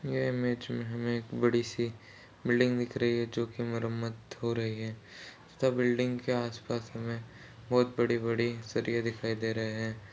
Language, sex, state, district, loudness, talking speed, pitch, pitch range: Hindi, male, Goa, North and South Goa, -32 LUFS, 160 wpm, 120 Hz, 115-120 Hz